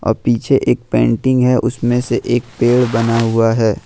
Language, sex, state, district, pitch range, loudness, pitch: Hindi, male, Jharkhand, Ranchi, 115-125 Hz, -15 LUFS, 120 Hz